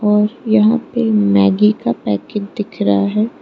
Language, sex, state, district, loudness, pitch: Hindi, female, Arunachal Pradesh, Lower Dibang Valley, -15 LUFS, 210 Hz